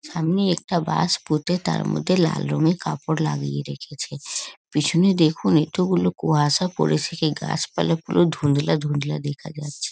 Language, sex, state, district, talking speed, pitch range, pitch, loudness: Bengali, female, West Bengal, North 24 Parganas, 145 wpm, 150-175 Hz, 160 Hz, -22 LUFS